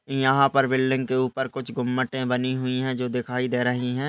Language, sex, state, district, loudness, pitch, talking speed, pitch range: Hindi, male, Maharashtra, Pune, -24 LUFS, 130 Hz, 220 wpm, 125-130 Hz